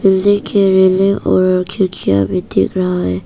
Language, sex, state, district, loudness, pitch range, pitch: Hindi, female, Arunachal Pradesh, Papum Pare, -14 LUFS, 180-195 Hz, 185 Hz